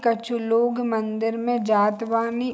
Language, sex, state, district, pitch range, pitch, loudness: Hindi, female, Bihar, Saharsa, 225-240 Hz, 230 Hz, -23 LUFS